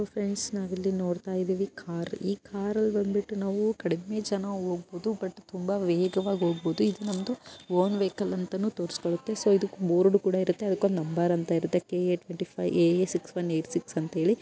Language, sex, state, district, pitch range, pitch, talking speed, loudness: Kannada, female, Karnataka, Dharwad, 175-200 Hz, 190 Hz, 190 wpm, -29 LUFS